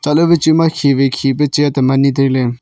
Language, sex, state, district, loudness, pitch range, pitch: Wancho, male, Arunachal Pradesh, Longding, -13 LUFS, 135-155 Hz, 140 Hz